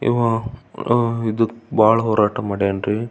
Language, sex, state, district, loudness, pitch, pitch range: Kannada, male, Karnataka, Belgaum, -19 LUFS, 115 Hz, 105-115 Hz